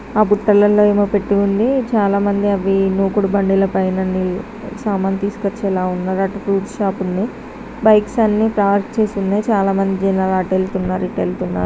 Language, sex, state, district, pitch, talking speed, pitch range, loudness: Telugu, female, Andhra Pradesh, Srikakulam, 200 Hz, 140 wpm, 195-210 Hz, -17 LUFS